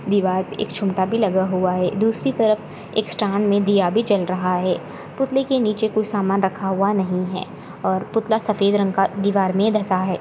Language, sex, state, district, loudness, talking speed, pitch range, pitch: Hindi, female, Goa, North and South Goa, -20 LUFS, 205 wpm, 190-215 Hz, 200 Hz